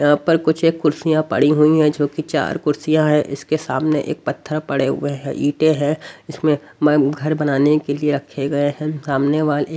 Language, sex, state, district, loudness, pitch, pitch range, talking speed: Hindi, male, Haryana, Rohtak, -18 LUFS, 150 Hz, 145-155 Hz, 205 wpm